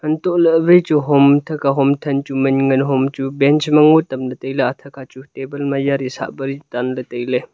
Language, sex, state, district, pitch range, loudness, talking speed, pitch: Wancho, male, Arunachal Pradesh, Longding, 135-150 Hz, -16 LUFS, 175 wpm, 140 Hz